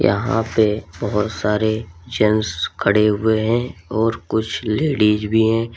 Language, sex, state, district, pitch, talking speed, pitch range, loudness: Hindi, male, Uttar Pradesh, Lalitpur, 110 Hz, 135 wpm, 105-115 Hz, -19 LUFS